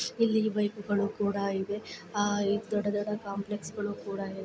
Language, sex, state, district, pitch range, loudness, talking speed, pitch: Kannada, female, Karnataka, Chamarajanagar, 200-210 Hz, -31 LUFS, 150 wpm, 205 Hz